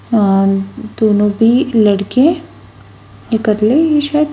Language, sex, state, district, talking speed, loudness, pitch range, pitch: Hindi, female, Bihar, West Champaran, 95 wpm, -13 LUFS, 210-275 Hz, 225 Hz